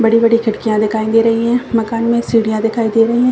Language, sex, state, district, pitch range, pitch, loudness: Hindi, female, Chhattisgarh, Bilaspur, 220-230 Hz, 230 Hz, -14 LUFS